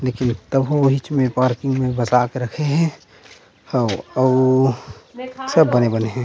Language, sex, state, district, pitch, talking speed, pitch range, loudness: Chhattisgarhi, male, Chhattisgarh, Rajnandgaon, 130 Hz, 155 wpm, 125-140 Hz, -18 LUFS